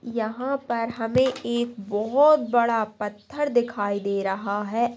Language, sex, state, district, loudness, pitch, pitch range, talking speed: Hindi, female, Andhra Pradesh, Chittoor, -24 LUFS, 235 Hz, 210-245 Hz, 135 wpm